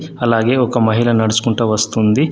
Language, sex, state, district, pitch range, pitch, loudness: Telugu, male, Telangana, Adilabad, 110-120 Hz, 115 Hz, -15 LUFS